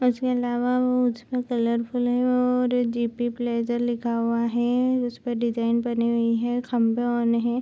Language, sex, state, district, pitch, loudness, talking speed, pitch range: Hindi, female, Bihar, Supaul, 240 Hz, -24 LUFS, 160 wpm, 235-245 Hz